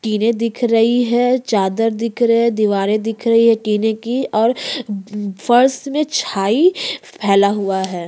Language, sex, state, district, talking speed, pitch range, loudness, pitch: Hindi, female, Uttarakhand, Tehri Garhwal, 155 wpm, 210-240 Hz, -16 LUFS, 225 Hz